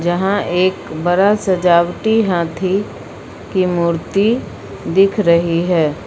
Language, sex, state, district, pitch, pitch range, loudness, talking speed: Hindi, female, Uttar Pradesh, Lucknow, 180 Hz, 170-195 Hz, -16 LUFS, 100 wpm